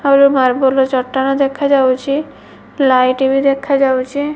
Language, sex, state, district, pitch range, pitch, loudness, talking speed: Odia, female, Odisha, Malkangiri, 260-275 Hz, 270 Hz, -14 LUFS, 95 wpm